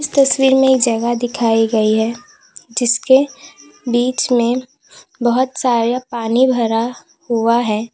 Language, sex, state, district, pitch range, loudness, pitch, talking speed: Hindi, female, Uttar Pradesh, Lalitpur, 230-265 Hz, -16 LUFS, 245 Hz, 115 wpm